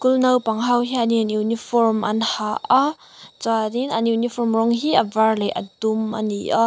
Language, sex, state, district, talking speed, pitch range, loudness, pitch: Mizo, female, Mizoram, Aizawl, 180 wpm, 220-240 Hz, -20 LUFS, 225 Hz